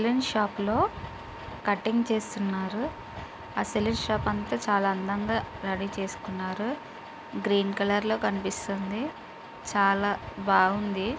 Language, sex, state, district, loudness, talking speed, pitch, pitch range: Telugu, female, Andhra Pradesh, Guntur, -28 LUFS, 75 wpm, 200 Hz, 195-220 Hz